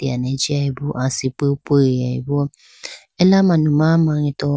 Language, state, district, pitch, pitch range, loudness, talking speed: Idu Mishmi, Arunachal Pradesh, Lower Dibang Valley, 145 Hz, 135-150 Hz, -18 LUFS, 120 wpm